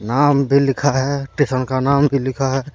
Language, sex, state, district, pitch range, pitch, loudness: Hindi, male, Jharkhand, Deoghar, 130-140 Hz, 135 Hz, -17 LUFS